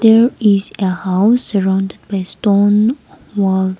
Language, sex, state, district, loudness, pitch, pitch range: English, female, Nagaland, Kohima, -15 LUFS, 200 Hz, 190-220 Hz